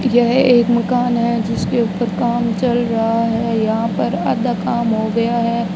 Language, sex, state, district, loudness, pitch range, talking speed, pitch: Hindi, female, Rajasthan, Bikaner, -17 LUFS, 225-240 Hz, 175 wpm, 235 Hz